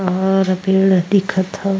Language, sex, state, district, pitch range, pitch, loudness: Bhojpuri, female, Uttar Pradesh, Ghazipur, 185-195 Hz, 190 Hz, -16 LUFS